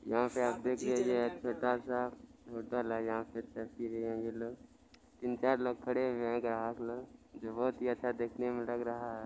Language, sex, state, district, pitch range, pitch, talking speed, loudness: Maithili, male, Bihar, Supaul, 115-125 Hz, 120 Hz, 135 wpm, -37 LUFS